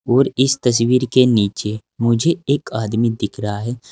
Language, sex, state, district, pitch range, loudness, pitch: Hindi, male, Uttar Pradesh, Saharanpur, 110-130 Hz, -18 LUFS, 120 Hz